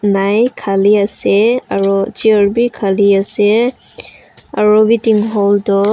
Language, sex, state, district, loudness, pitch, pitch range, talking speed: Nagamese, female, Nagaland, Kohima, -12 LUFS, 205 Hz, 200-220 Hz, 130 wpm